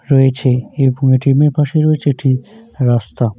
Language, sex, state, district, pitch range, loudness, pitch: Bengali, male, West Bengal, Jalpaiguri, 125-150 Hz, -14 LUFS, 135 Hz